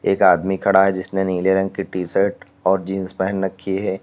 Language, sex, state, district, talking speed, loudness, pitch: Hindi, male, Uttar Pradesh, Lalitpur, 210 wpm, -19 LUFS, 95 Hz